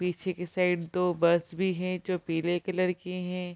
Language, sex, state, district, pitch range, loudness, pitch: Hindi, female, Bihar, Kishanganj, 175-185 Hz, -29 LUFS, 180 Hz